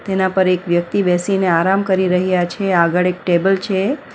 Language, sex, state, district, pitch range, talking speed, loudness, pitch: Gujarati, female, Gujarat, Valsad, 175-190 Hz, 185 wpm, -16 LUFS, 185 Hz